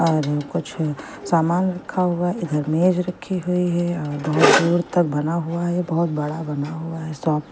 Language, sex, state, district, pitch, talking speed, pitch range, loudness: Hindi, female, Bihar, Kaimur, 165 Hz, 190 wpm, 155-175 Hz, -21 LUFS